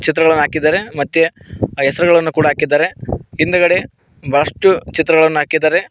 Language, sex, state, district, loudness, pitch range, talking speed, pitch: Kannada, male, Karnataka, Koppal, -14 LUFS, 145-165 Hz, 110 wpm, 155 Hz